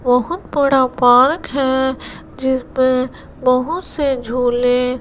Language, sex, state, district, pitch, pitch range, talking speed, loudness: Hindi, female, Gujarat, Gandhinagar, 260 Hz, 250-270 Hz, 95 wpm, -16 LUFS